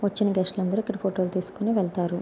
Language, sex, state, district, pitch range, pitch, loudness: Telugu, female, Andhra Pradesh, Anantapur, 185-210 Hz, 190 Hz, -26 LUFS